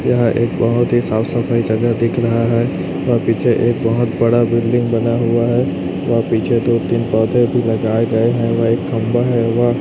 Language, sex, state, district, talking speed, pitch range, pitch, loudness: Hindi, male, Chhattisgarh, Raipur, 215 wpm, 115-120 Hz, 115 Hz, -16 LUFS